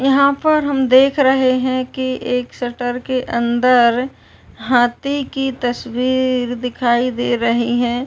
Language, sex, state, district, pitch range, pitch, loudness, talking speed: Hindi, female, Uttar Pradesh, Varanasi, 245-265 Hz, 250 Hz, -17 LUFS, 135 wpm